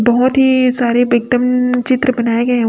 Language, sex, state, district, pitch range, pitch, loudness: Hindi, female, Chhattisgarh, Raipur, 240-255 Hz, 245 Hz, -13 LUFS